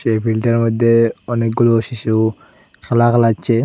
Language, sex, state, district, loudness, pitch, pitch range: Bengali, male, Assam, Hailakandi, -15 LUFS, 115 Hz, 115-120 Hz